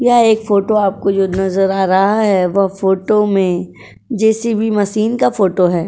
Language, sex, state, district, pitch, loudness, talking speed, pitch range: Hindi, female, Uttar Pradesh, Jyotiba Phule Nagar, 200 Hz, -14 LUFS, 195 wpm, 190-220 Hz